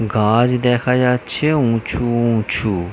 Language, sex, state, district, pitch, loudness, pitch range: Bengali, male, West Bengal, North 24 Parganas, 120 Hz, -17 LUFS, 110-125 Hz